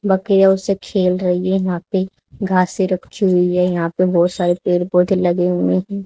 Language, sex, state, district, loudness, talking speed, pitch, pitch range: Hindi, female, Haryana, Charkhi Dadri, -17 LUFS, 200 wpm, 185 Hz, 180-190 Hz